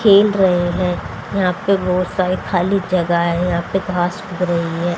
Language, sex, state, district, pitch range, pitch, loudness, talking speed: Hindi, female, Haryana, Rohtak, 175-190 Hz, 180 Hz, -18 LUFS, 195 wpm